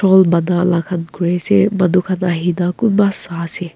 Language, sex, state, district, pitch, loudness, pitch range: Nagamese, female, Nagaland, Kohima, 180 Hz, -16 LUFS, 175-190 Hz